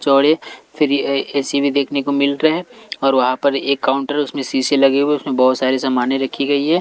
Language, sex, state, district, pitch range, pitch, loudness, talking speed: Hindi, male, Delhi, New Delhi, 135-145 Hz, 140 Hz, -17 LUFS, 210 wpm